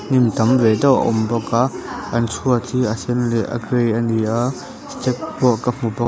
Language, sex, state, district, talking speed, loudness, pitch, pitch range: Mizo, male, Mizoram, Aizawl, 235 wpm, -19 LUFS, 120 Hz, 115-125 Hz